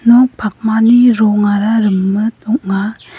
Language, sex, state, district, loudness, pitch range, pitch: Garo, female, Meghalaya, West Garo Hills, -12 LUFS, 205-230 Hz, 220 Hz